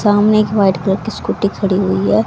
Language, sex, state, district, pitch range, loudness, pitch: Hindi, female, Haryana, Rohtak, 195-215 Hz, -15 LUFS, 200 Hz